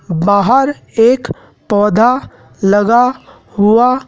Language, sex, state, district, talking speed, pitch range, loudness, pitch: Hindi, male, Madhya Pradesh, Dhar, 75 wpm, 205-250 Hz, -12 LUFS, 225 Hz